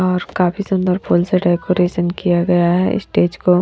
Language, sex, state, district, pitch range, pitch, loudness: Hindi, female, Haryana, Rohtak, 175-185 Hz, 180 Hz, -16 LUFS